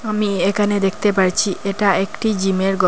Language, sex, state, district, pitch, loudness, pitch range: Bengali, female, Assam, Hailakandi, 195 Hz, -18 LUFS, 195-205 Hz